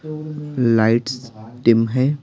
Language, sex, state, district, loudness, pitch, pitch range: Hindi, male, Bihar, Patna, -19 LUFS, 125 Hz, 115-150 Hz